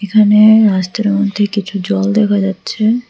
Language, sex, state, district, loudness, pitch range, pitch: Bengali, female, Tripura, West Tripura, -12 LUFS, 200-215 Hz, 205 Hz